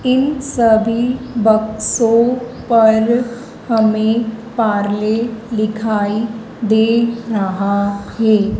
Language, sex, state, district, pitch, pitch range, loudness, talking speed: Hindi, female, Madhya Pradesh, Dhar, 225 Hz, 215-235 Hz, -16 LUFS, 70 wpm